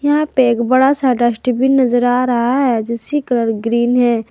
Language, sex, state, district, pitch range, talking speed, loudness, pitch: Hindi, female, Jharkhand, Garhwa, 235-260 Hz, 195 wpm, -15 LUFS, 245 Hz